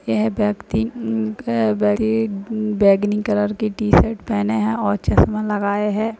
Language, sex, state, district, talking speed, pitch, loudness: Hindi, female, Bihar, Jahanabad, 145 wpm, 210 Hz, -19 LUFS